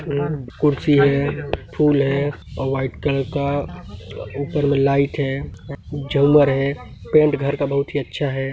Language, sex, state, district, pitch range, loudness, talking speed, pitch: Hindi, male, Chhattisgarh, Sarguja, 135-145 Hz, -20 LUFS, 160 wpm, 140 Hz